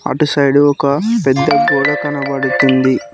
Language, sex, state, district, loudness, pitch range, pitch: Telugu, male, Telangana, Mahabubabad, -13 LUFS, 135-145 Hz, 140 Hz